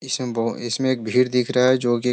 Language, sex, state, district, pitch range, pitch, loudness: Hindi, male, Bihar, Sitamarhi, 120-130 Hz, 125 Hz, -21 LUFS